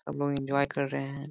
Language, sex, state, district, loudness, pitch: Hindi, male, Bihar, Jahanabad, -30 LUFS, 140 Hz